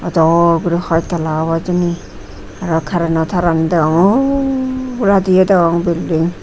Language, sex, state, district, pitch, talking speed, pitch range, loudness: Chakma, female, Tripura, Unakoti, 170 Hz, 130 wpm, 160-185 Hz, -14 LUFS